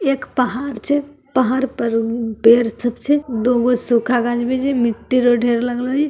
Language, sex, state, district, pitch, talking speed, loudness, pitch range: Angika, female, Bihar, Begusarai, 245 Hz, 175 wpm, -18 LUFS, 235-265 Hz